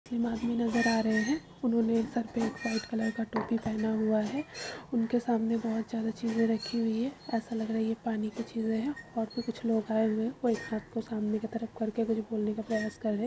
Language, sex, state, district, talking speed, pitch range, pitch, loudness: Hindi, female, Uttar Pradesh, Jalaun, 210 wpm, 220-235 Hz, 230 Hz, -32 LUFS